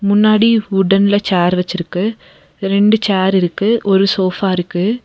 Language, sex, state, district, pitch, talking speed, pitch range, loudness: Tamil, female, Tamil Nadu, Nilgiris, 195 Hz, 120 wpm, 185-210 Hz, -14 LUFS